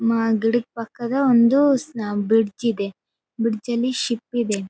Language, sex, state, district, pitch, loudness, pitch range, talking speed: Kannada, female, Karnataka, Bellary, 230 Hz, -21 LUFS, 220-240 Hz, 140 wpm